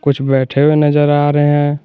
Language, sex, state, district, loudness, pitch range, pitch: Hindi, male, Jharkhand, Garhwa, -12 LUFS, 140-145 Hz, 145 Hz